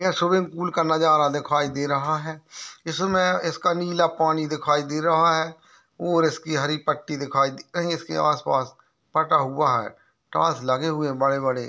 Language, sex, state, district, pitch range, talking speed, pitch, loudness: Hindi, male, Maharashtra, Aurangabad, 145-170 Hz, 155 wpm, 160 Hz, -23 LUFS